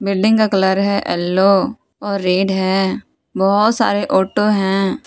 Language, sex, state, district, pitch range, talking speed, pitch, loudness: Hindi, female, Jharkhand, Palamu, 190-210 Hz, 140 wpm, 195 Hz, -16 LUFS